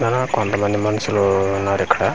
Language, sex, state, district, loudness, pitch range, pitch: Telugu, male, Andhra Pradesh, Manyam, -19 LUFS, 100-105 Hz, 105 Hz